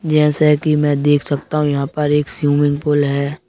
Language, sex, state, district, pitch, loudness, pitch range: Hindi, male, Madhya Pradesh, Bhopal, 145 Hz, -16 LUFS, 145-150 Hz